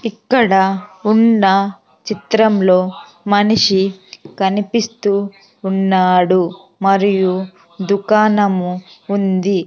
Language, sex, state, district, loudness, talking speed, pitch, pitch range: Telugu, female, Andhra Pradesh, Sri Satya Sai, -15 LUFS, 60 wpm, 195 Hz, 190-210 Hz